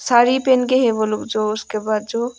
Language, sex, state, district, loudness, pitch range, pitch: Hindi, female, Arunachal Pradesh, Longding, -18 LUFS, 215-250 Hz, 235 Hz